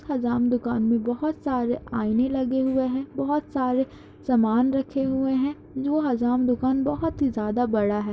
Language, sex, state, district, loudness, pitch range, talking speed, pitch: Hindi, female, Bihar, Kishanganj, -24 LUFS, 240-275 Hz, 170 wpm, 260 Hz